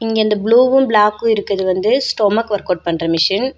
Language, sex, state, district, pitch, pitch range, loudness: Tamil, female, Tamil Nadu, Nilgiris, 210 Hz, 190-225 Hz, -15 LUFS